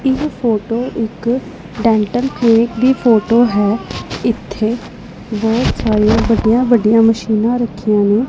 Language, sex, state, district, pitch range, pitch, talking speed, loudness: Punjabi, female, Punjab, Pathankot, 215-240 Hz, 225 Hz, 115 wpm, -15 LUFS